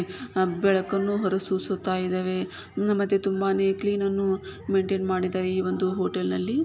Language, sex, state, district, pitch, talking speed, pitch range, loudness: Kannada, female, Karnataka, Shimoga, 190 Hz, 135 wpm, 185-195 Hz, -26 LUFS